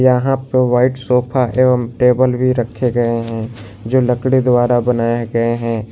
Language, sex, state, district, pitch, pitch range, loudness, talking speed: Hindi, male, Jharkhand, Garhwa, 125 Hz, 115-130 Hz, -15 LUFS, 160 wpm